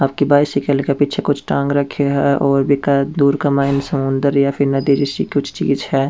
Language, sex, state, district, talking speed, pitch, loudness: Rajasthani, male, Rajasthan, Churu, 205 wpm, 140 Hz, -16 LUFS